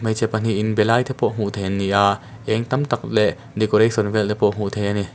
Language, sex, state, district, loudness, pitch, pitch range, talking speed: Mizo, male, Mizoram, Aizawl, -20 LUFS, 110 Hz, 105-115 Hz, 270 wpm